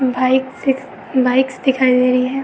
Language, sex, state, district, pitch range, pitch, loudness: Hindi, female, Uttar Pradesh, Etah, 255-265 Hz, 260 Hz, -16 LUFS